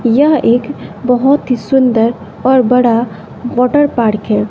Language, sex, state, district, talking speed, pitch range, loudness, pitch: Hindi, female, Bihar, West Champaran, 135 wpm, 230-260 Hz, -12 LUFS, 245 Hz